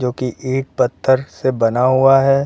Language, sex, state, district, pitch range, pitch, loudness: Hindi, male, Uttar Pradesh, Lucknow, 125-135 Hz, 130 Hz, -16 LUFS